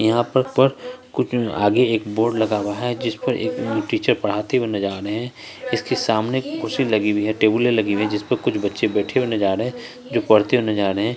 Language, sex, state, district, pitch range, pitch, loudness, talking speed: Hindi, female, Bihar, Saharsa, 105-125 Hz, 110 Hz, -20 LUFS, 255 wpm